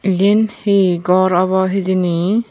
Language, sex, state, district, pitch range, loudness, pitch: Chakma, female, Tripura, Unakoti, 185-200 Hz, -15 LUFS, 190 Hz